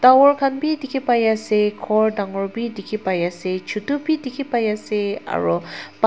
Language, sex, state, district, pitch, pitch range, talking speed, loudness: Nagamese, female, Nagaland, Dimapur, 215 Hz, 200-265 Hz, 140 wpm, -20 LUFS